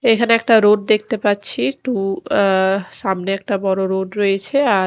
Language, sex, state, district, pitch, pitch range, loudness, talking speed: Bengali, female, Odisha, Khordha, 200 Hz, 195-225 Hz, -17 LUFS, 170 wpm